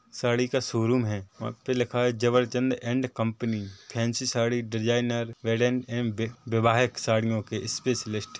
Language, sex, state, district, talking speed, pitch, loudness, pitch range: Hindi, male, Chhattisgarh, Rajnandgaon, 135 wpm, 120 Hz, -27 LUFS, 115-125 Hz